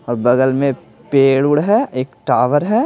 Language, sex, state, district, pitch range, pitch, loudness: Hindi, male, Bihar, Patna, 125-150 Hz, 135 Hz, -15 LUFS